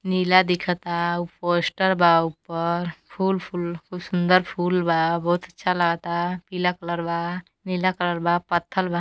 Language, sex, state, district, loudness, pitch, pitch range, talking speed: Bhojpuri, female, Uttar Pradesh, Deoria, -23 LUFS, 175 Hz, 170-180 Hz, 145 wpm